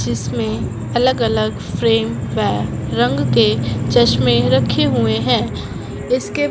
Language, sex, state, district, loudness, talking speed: Hindi, female, Punjab, Fazilka, -17 LUFS, 110 wpm